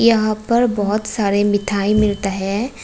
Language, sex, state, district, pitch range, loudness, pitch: Hindi, female, Tripura, West Tripura, 200-220 Hz, -18 LUFS, 210 Hz